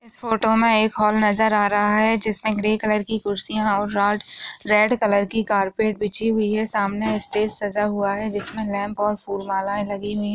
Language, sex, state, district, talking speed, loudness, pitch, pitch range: Hindi, female, Maharashtra, Solapur, 210 wpm, -21 LUFS, 210 Hz, 205-220 Hz